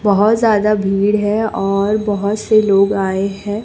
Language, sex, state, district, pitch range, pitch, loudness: Hindi, female, Chhattisgarh, Raipur, 195-215 Hz, 205 Hz, -15 LUFS